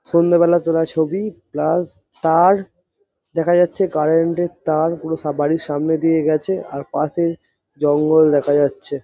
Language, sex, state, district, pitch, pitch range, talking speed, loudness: Bengali, male, West Bengal, Jhargram, 160 Hz, 150-170 Hz, 140 wpm, -18 LUFS